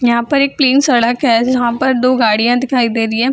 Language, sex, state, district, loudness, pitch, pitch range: Hindi, female, Bihar, Gaya, -13 LUFS, 245 Hz, 235-260 Hz